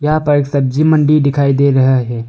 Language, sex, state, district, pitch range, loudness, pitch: Hindi, male, Arunachal Pradesh, Longding, 130-150 Hz, -12 LUFS, 140 Hz